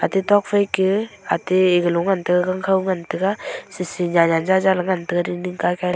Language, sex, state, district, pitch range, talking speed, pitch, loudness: Wancho, female, Arunachal Pradesh, Longding, 180-190 Hz, 190 wpm, 185 Hz, -19 LUFS